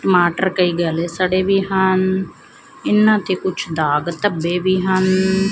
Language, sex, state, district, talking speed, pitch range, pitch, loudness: Punjabi, female, Punjab, Fazilka, 140 wpm, 175-190 Hz, 185 Hz, -17 LUFS